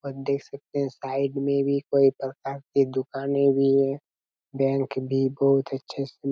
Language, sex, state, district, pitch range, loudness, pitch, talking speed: Hindi, male, Chhattisgarh, Raigarh, 135-140 Hz, -25 LUFS, 135 Hz, 170 wpm